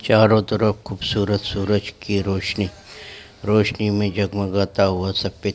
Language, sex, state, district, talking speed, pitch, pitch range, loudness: Hindi, male, Uttarakhand, Uttarkashi, 130 wpm, 100 Hz, 100-105 Hz, -21 LUFS